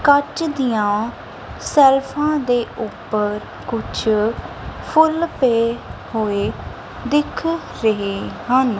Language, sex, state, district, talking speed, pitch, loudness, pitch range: Punjabi, female, Punjab, Kapurthala, 80 wpm, 250 Hz, -19 LUFS, 215-295 Hz